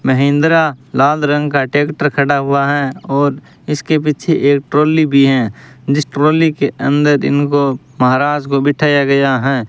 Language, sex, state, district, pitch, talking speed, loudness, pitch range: Hindi, male, Rajasthan, Bikaner, 145 Hz, 155 wpm, -13 LUFS, 140-150 Hz